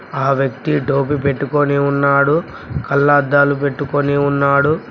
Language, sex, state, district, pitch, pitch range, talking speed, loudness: Telugu, male, Telangana, Mahabubabad, 140 Hz, 140-145 Hz, 100 wpm, -15 LUFS